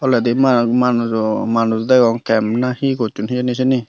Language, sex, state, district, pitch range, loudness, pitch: Chakma, female, Tripura, Unakoti, 115-125 Hz, -16 LUFS, 120 Hz